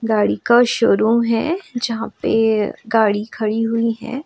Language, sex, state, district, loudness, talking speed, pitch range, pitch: Hindi, female, Goa, North and South Goa, -18 LUFS, 140 wpm, 220-235 Hz, 230 Hz